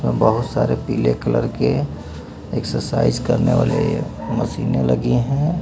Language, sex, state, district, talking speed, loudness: Hindi, male, Uttar Pradesh, Lucknow, 115 wpm, -19 LUFS